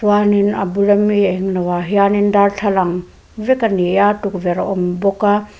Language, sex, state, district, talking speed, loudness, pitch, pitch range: Mizo, female, Mizoram, Aizawl, 170 wpm, -16 LUFS, 200 Hz, 185-205 Hz